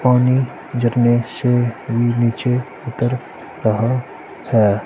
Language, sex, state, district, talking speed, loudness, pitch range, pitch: Hindi, male, Punjab, Pathankot, 100 wpm, -18 LUFS, 115-125 Hz, 120 Hz